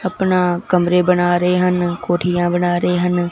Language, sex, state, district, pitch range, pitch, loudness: Hindi, male, Punjab, Fazilka, 175-180 Hz, 180 Hz, -16 LUFS